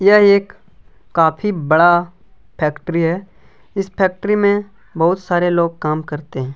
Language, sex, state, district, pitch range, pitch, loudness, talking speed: Hindi, male, Chhattisgarh, Kabirdham, 160-200 Hz, 175 Hz, -16 LUFS, 135 wpm